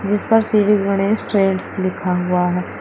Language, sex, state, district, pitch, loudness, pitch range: Hindi, female, Uttar Pradesh, Shamli, 195 Hz, -17 LUFS, 185-210 Hz